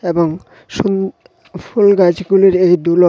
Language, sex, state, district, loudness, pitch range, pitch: Bengali, male, Tripura, West Tripura, -13 LUFS, 175-195 Hz, 185 Hz